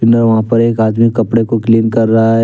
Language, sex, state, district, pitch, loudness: Hindi, male, Jharkhand, Deoghar, 115 Hz, -11 LUFS